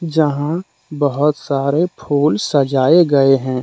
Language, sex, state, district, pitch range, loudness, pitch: Hindi, male, Jharkhand, Deoghar, 140-160 Hz, -16 LUFS, 145 Hz